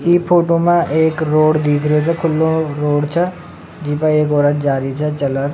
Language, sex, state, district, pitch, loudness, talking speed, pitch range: Rajasthani, male, Rajasthan, Nagaur, 155 Hz, -15 LUFS, 205 wpm, 145-165 Hz